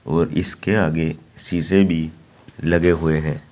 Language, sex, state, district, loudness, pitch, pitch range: Hindi, male, Uttar Pradesh, Saharanpur, -20 LUFS, 80 Hz, 80-85 Hz